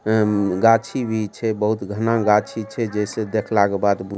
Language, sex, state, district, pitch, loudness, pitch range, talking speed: Maithili, male, Bihar, Supaul, 110 Hz, -20 LUFS, 100-110 Hz, 200 wpm